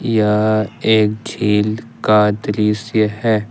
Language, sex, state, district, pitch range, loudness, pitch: Hindi, male, Jharkhand, Ranchi, 105-110 Hz, -16 LUFS, 110 Hz